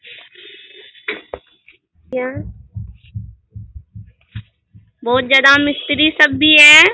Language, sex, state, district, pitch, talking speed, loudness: Hindi, female, Bihar, Bhagalpur, 110 Hz, 60 wpm, -10 LUFS